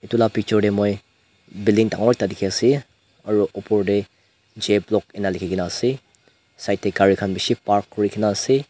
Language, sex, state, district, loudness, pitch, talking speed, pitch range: Nagamese, male, Nagaland, Dimapur, -21 LUFS, 105 Hz, 185 wpm, 100-110 Hz